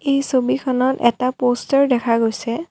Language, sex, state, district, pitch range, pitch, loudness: Assamese, female, Assam, Kamrup Metropolitan, 240-275 Hz, 255 Hz, -18 LUFS